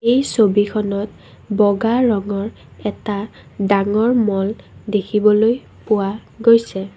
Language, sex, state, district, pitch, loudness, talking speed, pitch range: Assamese, female, Assam, Kamrup Metropolitan, 210 Hz, -18 LUFS, 85 wpm, 200-225 Hz